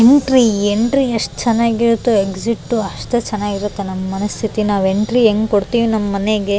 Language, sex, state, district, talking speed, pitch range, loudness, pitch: Kannada, female, Karnataka, Raichur, 135 wpm, 205-235 Hz, -16 LUFS, 215 Hz